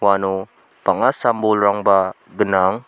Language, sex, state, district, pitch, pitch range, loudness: Garo, male, Meghalaya, South Garo Hills, 100 Hz, 95-110 Hz, -18 LUFS